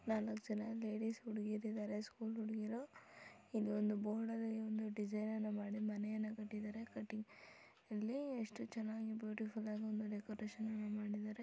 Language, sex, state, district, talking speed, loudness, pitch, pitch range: Kannada, female, Karnataka, Shimoga, 95 wpm, -44 LUFS, 215 Hz, 210-220 Hz